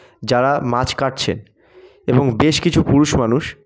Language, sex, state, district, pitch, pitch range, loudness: Bengali, male, West Bengal, North 24 Parganas, 140 Hz, 125-155 Hz, -17 LUFS